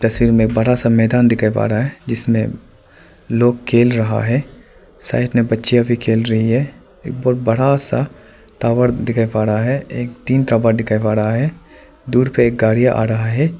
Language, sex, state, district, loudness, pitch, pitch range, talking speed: Hindi, male, Arunachal Pradesh, Lower Dibang Valley, -16 LUFS, 120 Hz, 115-125 Hz, 190 wpm